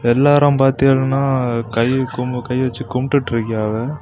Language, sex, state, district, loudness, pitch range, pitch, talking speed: Tamil, male, Tamil Nadu, Kanyakumari, -17 LUFS, 120-135 Hz, 130 Hz, 120 wpm